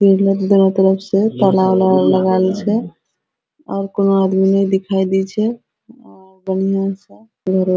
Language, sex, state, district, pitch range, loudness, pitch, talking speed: Hindi, female, Bihar, Araria, 190-195 Hz, -15 LUFS, 195 Hz, 130 wpm